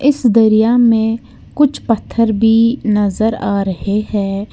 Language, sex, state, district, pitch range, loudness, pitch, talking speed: Hindi, female, Uttar Pradesh, Lalitpur, 210-230 Hz, -14 LUFS, 225 Hz, 130 wpm